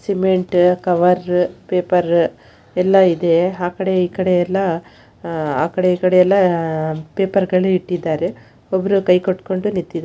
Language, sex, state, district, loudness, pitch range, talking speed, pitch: Kannada, female, Karnataka, Shimoga, -17 LUFS, 170-185 Hz, 130 wpm, 180 Hz